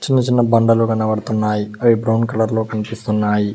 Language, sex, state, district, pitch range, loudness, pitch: Telugu, male, Telangana, Mahabubabad, 105-115 Hz, -17 LUFS, 110 Hz